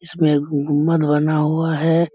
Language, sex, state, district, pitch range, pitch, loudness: Hindi, male, Bihar, Samastipur, 150-165 Hz, 155 Hz, -18 LUFS